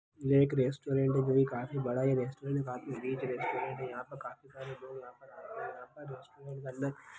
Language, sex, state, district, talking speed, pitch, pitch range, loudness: Hindi, male, Chhattisgarh, Bastar, 240 wpm, 135 Hz, 130-140 Hz, -33 LUFS